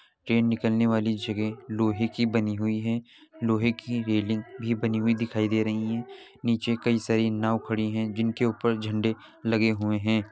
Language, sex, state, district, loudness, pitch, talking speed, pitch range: Hindi, male, Uttar Pradesh, Varanasi, -27 LUFS, 110 Hz, 185 wpm, 110-115 Hz